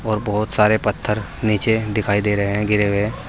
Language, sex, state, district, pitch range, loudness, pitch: Hindi, male, Uttar Pradesh, Saharanpur, 105-110 Hz, -19 LUFS, 105 Hz